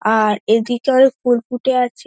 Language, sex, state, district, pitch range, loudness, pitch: Bengali, female, West Bengal, Dakshin Dinajpur, 220-255 Hz, -16 LUFS, 245 Hz